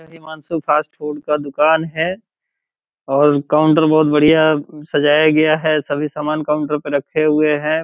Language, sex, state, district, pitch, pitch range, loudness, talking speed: Hindi, male, Bihar, Purnia, 155 Hz, 150-155 Hz, -16 LUFS, 170 wpm